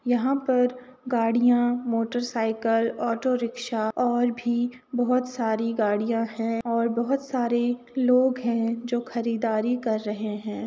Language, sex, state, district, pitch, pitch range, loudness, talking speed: Hindi, female, Uttar Pradesh, Jalaun, 240 Hz, 230-245 Hz, -25 LUFS, 130 wpm